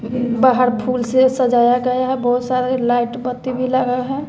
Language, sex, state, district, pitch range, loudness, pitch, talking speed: Hindi, female, Bihar, West Champaran, 245-255 Hz, -17 LUFS, 250 Hz, 180 wpm